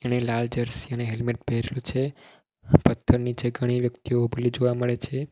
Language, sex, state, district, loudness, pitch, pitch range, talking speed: Gujarati, male, Gujarat, Valsad, -25 LUFS, 120 Hz, 120-125 Hz, 180 wpm